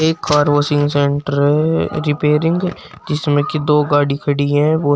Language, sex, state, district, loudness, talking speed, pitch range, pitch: Hindi, male, Uttar Pradesh, Shamli, -16 LUFS, 145 wpm, 145-155 Hz, 150 Hz